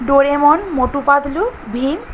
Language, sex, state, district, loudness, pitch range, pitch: Bengali, female, West Bengal, North 24 Parganas, -15 LUFS, 275-300 Hz, 280 Hz